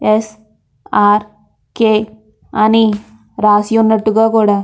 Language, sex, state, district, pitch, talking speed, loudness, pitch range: Telugu, female, Andhra Pradesh, Anantapur, 215 Hz, 80 wpm, -13 LUFS, 210-220 Hz